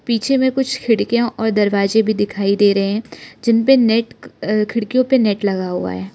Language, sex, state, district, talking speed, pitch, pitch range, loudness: Hindi, female, Arunachal Pradesh, Lower Dibang Valley, 205 wpm, 220 Hz, 200-235 Hz, -17 LUFS